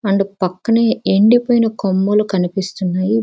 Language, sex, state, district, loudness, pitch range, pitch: Telugu, female, Andhra Pradesh, Visakhapatnam, -16 LUFS, 190-225 Hz, 195 Hz